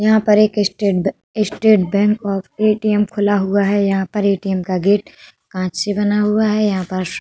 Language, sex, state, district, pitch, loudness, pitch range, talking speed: Hindi, female, Uttar Pradesh, Budaun, 205 Hz, -17 LUFS, 195-210 Hz, 210 wpm